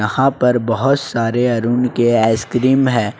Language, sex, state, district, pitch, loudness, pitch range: Hindi, male, Jharkhand, Ranchi, 120 Hz, -15 LUFS, 115-130 Hz